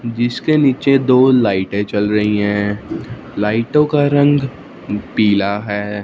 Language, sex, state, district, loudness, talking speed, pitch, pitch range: Hindi, male, Punjab, Fazilka, -15 LUFS, 120 wpm, 110 Hz, 105-135 Hz